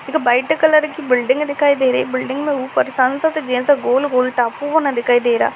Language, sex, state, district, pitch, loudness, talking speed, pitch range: Hindi, female, Chhattisgarh, Raigarh, 270 Hz, -16 LUFS, 215 wpm, 250-295 Hz